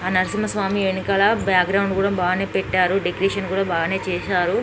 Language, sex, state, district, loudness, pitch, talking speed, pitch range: Telugu, female, Andhra Pradesh, Srikakulam, -20 LUFS, 190 Hz, 170 wpm, 185-195 Hz